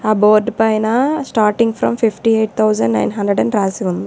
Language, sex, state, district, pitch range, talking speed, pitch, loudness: Telugu, female, Telangana, Hyderabad, 205-225 Hz, 190 wpm, 215 Hz, -15 LUFS